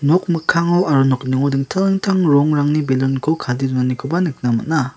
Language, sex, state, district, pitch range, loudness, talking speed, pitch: Garo, male, Meghalaya, West Garo Hills, 130-170 Hz, -17 LUFS, 155 wpm, 145 Hz